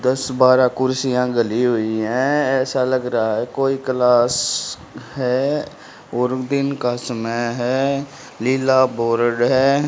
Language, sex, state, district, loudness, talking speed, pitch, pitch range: Hindi, male, Haryana, Rohtak, -19 LUFS, 130 wpm, 130 Hz, 120-135 Hz